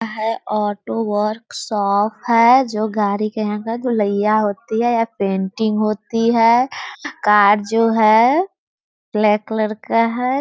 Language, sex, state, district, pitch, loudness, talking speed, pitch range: Hindi, female, Bihar, Muzaffarpur, 220 Hz, -17 LUFS, 130 wpm, 210-230 Hz